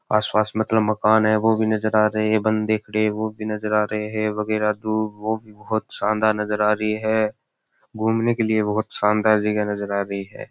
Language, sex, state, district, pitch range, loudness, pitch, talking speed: Rajasthani, male, Rajasthan, Churu, 105-110 Hz, -21 LUFS, 110 Hz, 210 wpm